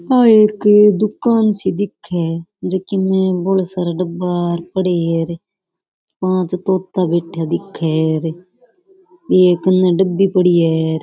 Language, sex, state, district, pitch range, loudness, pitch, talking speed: Rajasthani, female, Rajasthan, Churu, 170-195 Hz, -16 LUFS, 185 Hz, 140 wpm